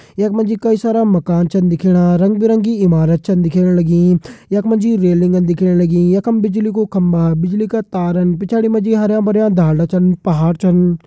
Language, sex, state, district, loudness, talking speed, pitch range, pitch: Hindi, male, Uttarakhand, Uttarkashi, -14 LUFS, 200 wpm, 175-215 Hz, 185 Hz